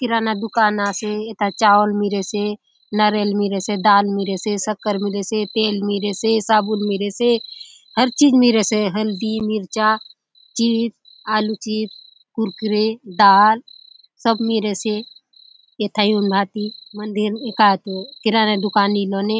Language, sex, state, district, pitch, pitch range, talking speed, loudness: Halbi, female, Chhattisgarh, Bastar, 210 Hz, 205-220 Hz, 110 wpm, -18 LUFS